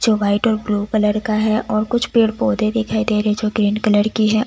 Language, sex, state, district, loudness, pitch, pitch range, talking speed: Hindi, female, Bihar, West Champaran, -18 LUFS, 215 Hz, 210-220 Hz, 270 wpm